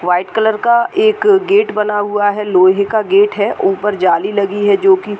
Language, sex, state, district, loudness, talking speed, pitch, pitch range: Hindi, female, Uttar Pradesh, Deoria, -13 LUFS, 220 wpm, 205 Hz, 195-220 Hz